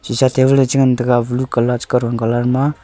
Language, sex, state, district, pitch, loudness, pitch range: Wancho, male, Arunachal Pradesh, Longding, 125 Hz, -15 LUFS, 120-130 Hz